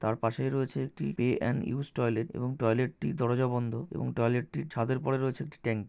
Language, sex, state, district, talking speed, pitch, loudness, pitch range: Bengali, male, West Bengal, North 24 Parganas, 225 wpm, 125 Hz, -31 LUFS, 115-135 Hz